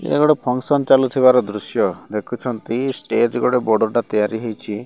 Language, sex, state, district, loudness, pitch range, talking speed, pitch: Odia, male, Odisha, Malkangiri, -18 LUFS, 110-130 Hz, 135 wpm, 120 Hz